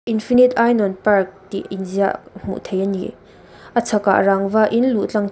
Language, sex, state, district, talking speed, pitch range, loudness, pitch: Mizo, female, Mizoram, Aizawl, 180 wpm, 195-230 Hz, -18 LUFS, 205 Hz